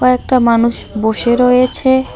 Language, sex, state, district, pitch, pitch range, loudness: Bengali, male, West Bengal, Alipurduar, 250 Hz, 235-255 Hz, -12 LUFS